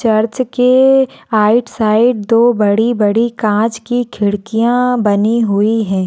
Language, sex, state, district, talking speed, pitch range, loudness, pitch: Hindi, female, Bihar, Saharsa, 120 wpm, 210-240 Hz, -13 LUFS, 225 Hz